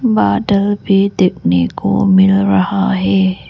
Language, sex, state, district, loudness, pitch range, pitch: Hindi, female, Arunachal Pradesh, Lower Dibang Valley, -13 LUFS, 185-200 Hz, 195 Hz